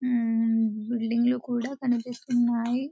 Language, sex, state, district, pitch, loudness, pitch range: Telugu, female, Telangana, Nalgonda, 240 Hz, -26 LUFS, 230-245 Hz